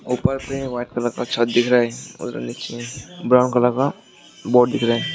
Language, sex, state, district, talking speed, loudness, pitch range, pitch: Hindi, male, West Bengal, Alipurduar, 185 wpm, -20 LUFS, 120-125 Hz, 125 Hz